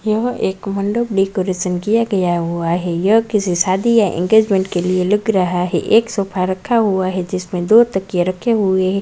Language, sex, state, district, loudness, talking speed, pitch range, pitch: Kumaoni, female, Uttarakhand, Tehri Garhwal, -16 LUFS, 195 wpm, 180-215 Hz, 190 Hz